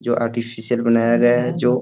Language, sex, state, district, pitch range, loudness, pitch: Hindi, male, Bihar, Gaya, 115-120 Hz, -18 LUFS, 120 Hz